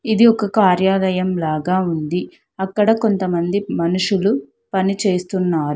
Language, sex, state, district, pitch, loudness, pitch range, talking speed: Telugu, female, Telangana, Hyderabad, 190 Hz, -18 LUFS, 175-205 Hz, 95 wpm